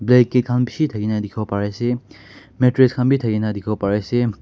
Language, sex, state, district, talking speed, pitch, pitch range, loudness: Nagamese, male, Nagaland, Kohima, 190 wpm, 120 Hz, 105-125 Hz, -19 LUFS